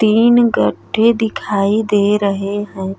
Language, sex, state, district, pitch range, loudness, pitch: Bhojpuri, female, Uttar Pradesh, Gorakhpur, 200-225 Hz, -15 LUFS, 210 Hz